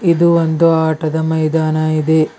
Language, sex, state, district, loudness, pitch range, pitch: Kannada, male, Karnataka, Bidar, -14 LUFS, 155-165 Hz, 160 Hz